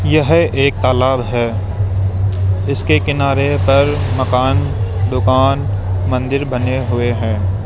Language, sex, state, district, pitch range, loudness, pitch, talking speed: Hindi, male, Rajasthan, Jaipur, 95-125 Hz, -15 LUFS, 100 Hz, 100 wpm